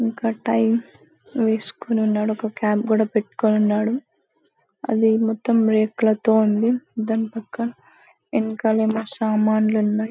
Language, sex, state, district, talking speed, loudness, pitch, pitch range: Telugu, female, Telangana, Karimnagar, 125 wpm, -21 LUFS, 220 Hz, 215-225 Hz